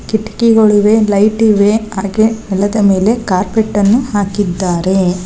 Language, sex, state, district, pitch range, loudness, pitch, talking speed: Kannada, female, Karnataka, Bangalore, 195-220 Hz, -12 LUFS, 205 Hz, 100 wpm